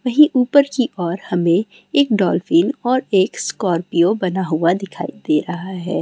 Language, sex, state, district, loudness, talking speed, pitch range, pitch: Hindi, female, West Bengal, Jalpaiguri, -18 LUFS, 160 wpm, 175-255 Hz, 190 Hz